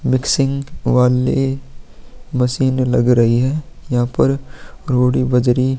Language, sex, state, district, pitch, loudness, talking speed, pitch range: Hindi, male, Chhattisgarh, Korba, 130 Hz, -17 LUFS, 135 wpm, 125-135 Hz